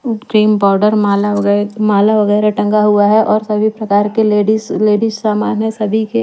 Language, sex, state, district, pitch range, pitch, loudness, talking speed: Hindi, female, Chhattisgarh, Raipur, 205-215 Hz, 210 Hz, -13 LUFS, 190 wpm